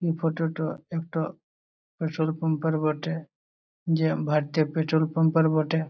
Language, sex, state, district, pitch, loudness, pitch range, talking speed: Bengali, male, West Bengal, Malda, 160 Hz, -26 LUFS, 155-165 Hz, 130 wpm